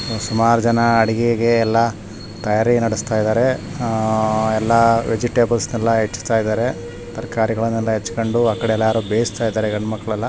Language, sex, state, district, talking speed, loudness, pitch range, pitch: Kannada, male, Karnataka, Shimoga, 105 wpm, -18 LUFS, 110-115 Hz, 115 Hz